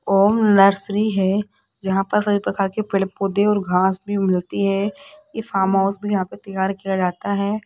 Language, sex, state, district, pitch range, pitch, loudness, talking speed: Hindi, female, Rajasthan, Jaipur, 195-205 Hz, 195 Hz, -20 LUFS, 195 wpm